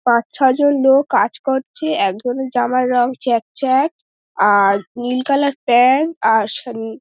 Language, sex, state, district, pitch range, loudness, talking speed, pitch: Bengali, female, West Bengal, Dakshin Dinajpur, 235-270 Hz, -16 LUFS, 160 wpm, 255 Hz